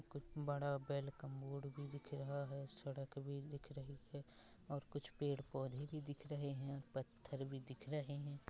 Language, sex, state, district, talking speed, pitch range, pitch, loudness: Hindi, female, Chhattisgarh, Rajnandgaon, 195 wpm, 135-145 Hz, 140 Hz, -48 LUFS